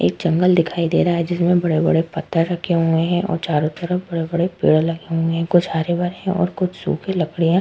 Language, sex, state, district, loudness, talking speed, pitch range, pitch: Hindi, female, Uttar Pradesh, Jalaun, -19 LUFS, 220 wpm, 165-175 Hz, 170 Hz